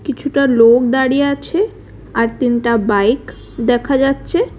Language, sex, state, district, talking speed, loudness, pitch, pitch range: Bengali, female, Odisha, Khordha, 120 wpm, -15 LUFS, 260 Hz, 235-280 Hz